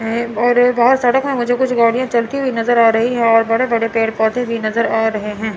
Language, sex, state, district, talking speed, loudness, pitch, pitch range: Hindi, female, Chandigarh, Chandigarh, 270 wpm, -15 LUFS, 230 Hz, 225-245 Hz